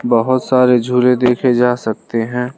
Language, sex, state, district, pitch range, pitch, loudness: Hindi, male, Arunachal Pradesh, Lower Dibang Valley, 120-125 Hz, 125 Hz, -14 LUFS